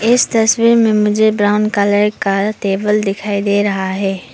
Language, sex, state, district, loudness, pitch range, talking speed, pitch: Hindi, female, Arunachal Pradesh, Papum Pare, -14 LUFS, 200-215 Hz, 165 wpm, 205 Hz